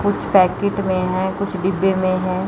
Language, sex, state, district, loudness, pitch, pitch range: Hindi, female, Chandigarh, Chandigarh, -18 LUFS, 190 Hz, 185-195 Hz